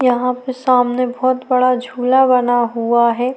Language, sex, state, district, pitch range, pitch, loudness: Hindi, female, Chhattisgarh, Sukma, 245-255 Hz, 250 Hz, -15 LUFS